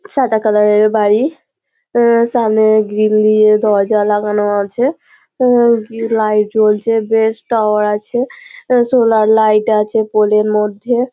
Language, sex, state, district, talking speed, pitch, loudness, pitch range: Bengali, female, West Bengal, Malda, 115 wpm, 220 Hz, -13 LUFS, 210-235 Hz